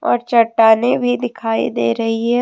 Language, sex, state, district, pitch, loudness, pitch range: Hindi, female, Jharkhand, Deoghar, 230 Hz, -16 LUFS, 225-245 Hz